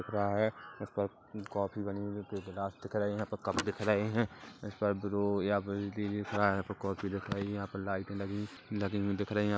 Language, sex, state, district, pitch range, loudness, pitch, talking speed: Hindi, male, Chhattisgarh, Kabirdham, 100-105 Hz, -35 LUFS, 100 Hz, 145 wpm